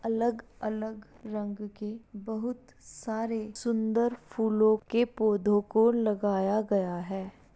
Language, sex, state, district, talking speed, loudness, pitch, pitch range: Hindi, female, Bihar, Madhepura, 95 wpm, -29 LUFS, 220 Hz, 210-230 Hz